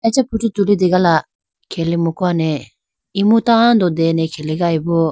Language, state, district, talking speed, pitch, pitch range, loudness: Idu Mishmi, Arunachal Pradesh, Lower Dibang Valley, 130 wpm, 170 Hz, 160-205 Hz, -16 LUFS